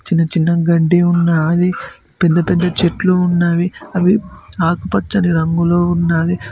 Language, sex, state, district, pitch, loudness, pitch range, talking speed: Telugu, male, Telangana, Mahabubabad, 175 Hz, -15 LUFS, 170-180 Hz, 110 wpm